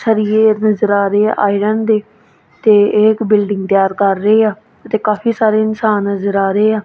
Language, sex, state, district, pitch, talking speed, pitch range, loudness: Punjabi, female, Punjab, Kapurthala, 210 Hz, 195 wpm, 205-220 Hz, -13 LUFS